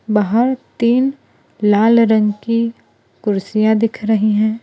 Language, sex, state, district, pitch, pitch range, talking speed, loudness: Hindi, female, Gujarat, Valsad, 220 Hz, 210-230 Hz, 115 wpm, -16 LUFS